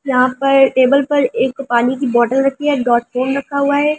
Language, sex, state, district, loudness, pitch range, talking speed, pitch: Hindi, female, Delhi, New Delhi, -15 LUFS, 255-280 Hz, 225 wpm, 270 Hz